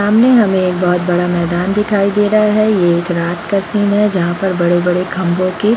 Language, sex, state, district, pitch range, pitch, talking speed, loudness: Hindi, female, Bihar, Jamui, 175-205 Hz, 185 Hz, 240 wpm, -14 LUFS